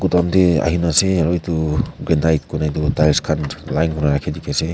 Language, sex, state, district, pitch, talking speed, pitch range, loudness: Nagamese, male, Nagaland, Kohima, 80 Hz, 190 wpm, 75-85 Hz, -18 LUFS